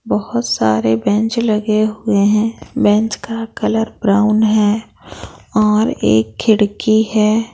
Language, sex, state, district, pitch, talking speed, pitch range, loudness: Hindi, female, Bihar, Patna, 215 Hz, 120 wpm, 200-220 Hz, -15 LUFS